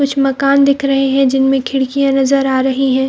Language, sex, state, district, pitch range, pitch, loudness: Hindi, female, Chhattisgarh, Bilaspur, 265-275 Hz, 270 Hz, -13 LUFS